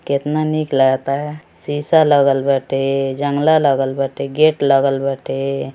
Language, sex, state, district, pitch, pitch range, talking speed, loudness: Bhojpuri, male, Uttar Pradesh, Gorakhpur, 140 Hz, 135-150 Hz, 125 wpm, -16 LUFS